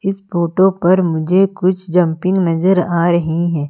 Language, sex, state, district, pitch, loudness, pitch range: Hindi, female, Madhya Pradesh, Umaria, 180 Hz, -15 LUFS, 170-190 Hz